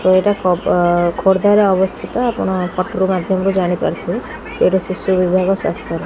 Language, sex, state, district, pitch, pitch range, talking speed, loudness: Odia, female, Odisha, Khordha, 185 Hz, 185-195 Hz, 150 wpm, -16 LUFS